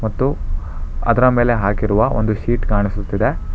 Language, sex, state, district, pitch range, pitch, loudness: Kannada, male, Karnataka, Bangalore, 100-115 Hz, 105 Hz, -18 LUFS